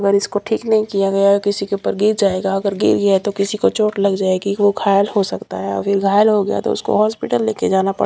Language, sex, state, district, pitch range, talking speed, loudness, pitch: Hindi, female, Punjab, Kapurthala, 195-205 Hz, 260 wpm, -17 LUFS, 200 Hz